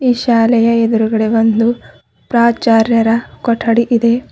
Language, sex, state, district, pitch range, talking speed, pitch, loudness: Kannada, female, Karnataka, Bidar, 225-235 Hz, 95 wpm, 230 Hz, -13 LUFS